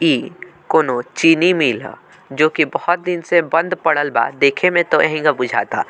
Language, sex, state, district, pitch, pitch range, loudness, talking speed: Bhojpuri, male, Bihar, Muzaffarpur, 160 Hz, 145-175 Hz, -16 LUFS, 185 wpm